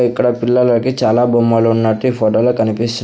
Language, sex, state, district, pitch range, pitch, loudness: Telugu, male, Andhra Pradesh, Sri Satya Sai, 110-125 Hz, 115 Hz, -14 LUFS